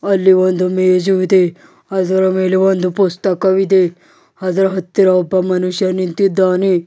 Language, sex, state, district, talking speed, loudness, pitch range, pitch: Kannada, male, Karnataka, Bidar, 115 wpm, -14 LUFS, 185-190 Hz, 185 Hz